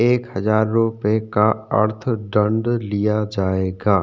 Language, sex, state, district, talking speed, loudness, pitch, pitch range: Hindi, male, Uttarakhand, Tehri Garhwal, 120 wpm, -20 LUFS, 110 Hz, 105-115 Hz